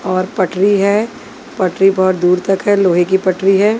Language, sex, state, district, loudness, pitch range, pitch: Hindi, female, Maharashtra, Washim, -13 LUFS, 185-200 Hz, 190 Hz